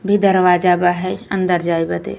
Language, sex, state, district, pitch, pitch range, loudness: Bhojpuri, female, Uttar Pradesh, Ghazipur, 180 Hz, 175-190 Hz, -16 LUFS